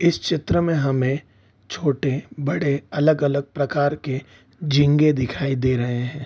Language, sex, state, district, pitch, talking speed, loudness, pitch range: Hindi, male, Bihar, East Champaran, 140 Hz, 125 wpm, -21 LUFS, 130-145 Hz